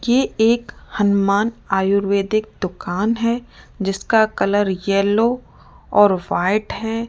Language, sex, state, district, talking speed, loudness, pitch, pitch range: Hindi, female, Rajasthan, Jaipur, 100 wpm, -19 LUFS, 205 Hz, 200-230 Hz